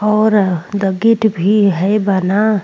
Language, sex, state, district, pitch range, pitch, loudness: Hindi, female, Uttar Pradesh, Jalaun, 190-215 Hz, 205 Hz, -14 LUFS